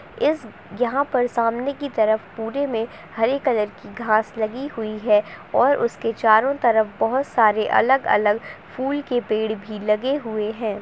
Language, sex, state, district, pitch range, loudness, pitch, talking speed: Hindi, female, Uttar Pradesh, Budaun, 215-255 Hz, -21 LUFS, 225 Hz, 160 wpm